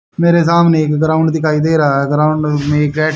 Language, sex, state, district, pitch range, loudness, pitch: Hindi, male, Haryana, Charkhi Dadri, 150-160 Hz, -13 LUFS, 155 Hz